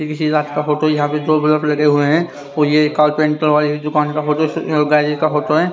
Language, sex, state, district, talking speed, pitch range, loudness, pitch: Hindi, male, Haryana, Rohtak, 145 wpm, 150-155 Hz, -16 LUFS, 150 Hz